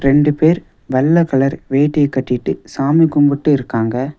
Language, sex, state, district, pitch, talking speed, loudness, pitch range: Tamil, male, Tamil Nadu, Nilgiris, 140 Hz, 130 wpm, -15 LUFS, 135-150 Hz